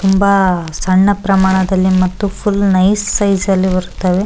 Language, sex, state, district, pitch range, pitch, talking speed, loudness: Kannada, male, Karnataka, Bellary, 185-200 Hz, 190 Hz, 140 wpm, -13 LUFS